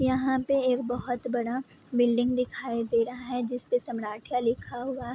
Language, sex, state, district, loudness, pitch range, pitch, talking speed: Hindi, female, Bihar, Vaishali, -29 LUFS, 240-255 Hz, 245 Hz, 175 wpm